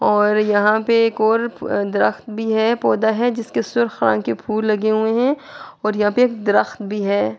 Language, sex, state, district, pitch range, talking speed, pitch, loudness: Urdu, female, Andhra Pradesh, Anantapur, 210-230 Hz, 205 wpm, 220 Hz, -18 LUFS